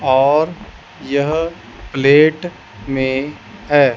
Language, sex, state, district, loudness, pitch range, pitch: Hindi, male, Chandigarh, Chandigarh, -16 LUFS, 130-155 Hz, 140 Hz